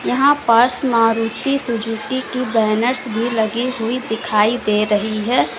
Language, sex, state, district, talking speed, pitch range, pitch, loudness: Hindi, female, Uttar Pradesh, Lalitpur, 140 wpm, 220-255 Hz, 230 Hz, -17 LUFS